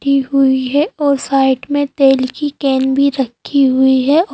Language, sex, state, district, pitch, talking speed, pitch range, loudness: Hindi, female, Madhya Pradesh, Bhopal, 275 Hz, 165 wpm, 265-285 Hz, -14 LUFS